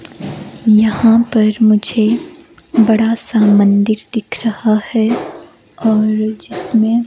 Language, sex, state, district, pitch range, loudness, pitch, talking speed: Hindi, female, Himachal Pradesh, Shimla, 215-230 Hz, -13 LUFS, 220 Hz, 95 wpm